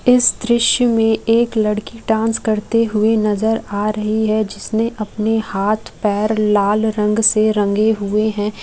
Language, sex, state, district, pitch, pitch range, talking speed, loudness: Hindi, female, West Bengal, Purulia, 215 Hz, 210-225 Hz, 155 wpm, -16 LUFS